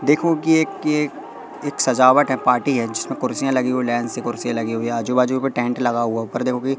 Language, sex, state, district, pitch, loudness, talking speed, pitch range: Hindi, male, Madhya Pradesh, Katni, 125 Hz, -20 LUFS, 275 wpm, 120-135 Hz